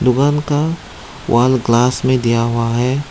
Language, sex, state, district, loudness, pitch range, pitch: Hindi, male, Tripura, Dhalai, -15 LUFS, 120-140 Hz, 125 Hz